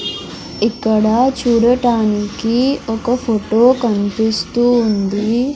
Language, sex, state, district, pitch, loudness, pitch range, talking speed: Telugu, male, Andhra Pradesh, Sri Satya Sai, 230 Hz, -15 LUFS, 215-245 Hz, 65 wpm